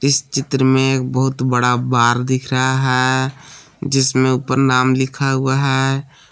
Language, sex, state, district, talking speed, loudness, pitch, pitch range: Hindi, male, Jharkhand, Palamu, 150 wpm, -16 LUFS, 130 Hz, 130-135 Hz